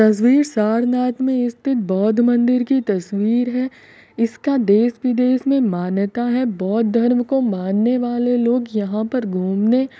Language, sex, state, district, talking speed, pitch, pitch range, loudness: Hindi, female, Uttar Pradesh, Varanasi, 145 wpm, 240 Hz, 215-250 Hz, -18 LUFS